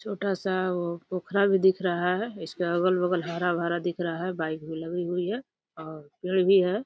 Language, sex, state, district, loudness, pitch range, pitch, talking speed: Hindi, female, Uttar Pradesh, Deoria, -27 LUFS, 170-190 Hz, 180 Hz, 210 wpm